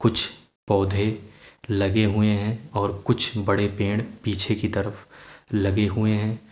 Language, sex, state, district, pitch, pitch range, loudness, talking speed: Hindi, male, Uttar Pradesh, Lucknow, 105 Hz, 100-110 Hz, -23 LUFS, 140 wpm